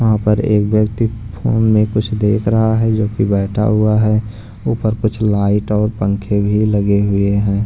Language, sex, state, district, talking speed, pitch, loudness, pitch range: Hindi, male, Punjab, Pathankot, 180 wpm, 105 Hz, -15 LUFS, 100-110 Hz